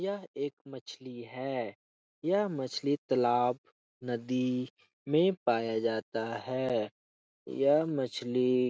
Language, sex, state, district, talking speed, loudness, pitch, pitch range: Hindi, male, Bihar, Jahanabad, 105 wpm, -32 LUFS, 125 Hz, 120-140 Hz